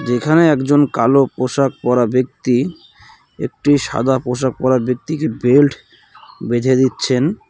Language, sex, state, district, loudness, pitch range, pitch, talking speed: Bengali, male, West Bengal, Cooch Behar, -16 LUFS, 125-145 Hz, 130 Hz, 120 wpm